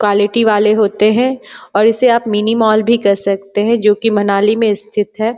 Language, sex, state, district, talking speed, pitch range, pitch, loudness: Hindi, female, Bihar, Bhagalpur, 225 wpm, 205-225 Hz, 215 Hz, -13 LUFS